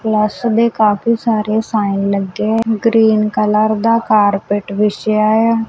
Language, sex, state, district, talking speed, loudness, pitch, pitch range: Punjabi, female, Punjab, Kapurthala, 125 wpm, -14 LUFS, 215 Hz, 210-225 Hz